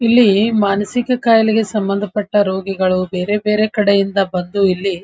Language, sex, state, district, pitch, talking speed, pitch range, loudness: Kannada, female, Karnataka, Dharwad, 205 Hz, 145 wpm, 195-215 Hz, -15 LUFS